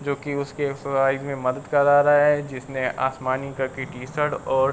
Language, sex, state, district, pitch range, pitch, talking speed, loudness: Hindi, male, Uttar Pradesh, Varanasi, 130-145 Hz, 135 Hz, 165 wpm, -23 LUFS